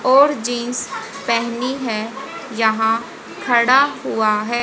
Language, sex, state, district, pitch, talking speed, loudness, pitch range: Hindi, female, Haryana, Jhajjar, 235 Hz, 105 wpm, -18 LUFS, 225-260 Hz